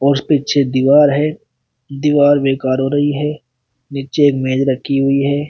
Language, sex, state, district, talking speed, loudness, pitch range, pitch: Hindi, male, Uttar Pradesh, Shamli, 165 wpm, -14 LUFS, 135-145 Hz, 140 Hz